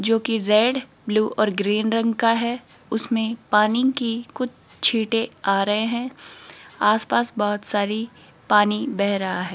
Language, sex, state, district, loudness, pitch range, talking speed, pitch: Hindi, female, Rajasthan, Jaipur, -21 LUFS, 210-235 Hz, 150 wpm, 225 Hz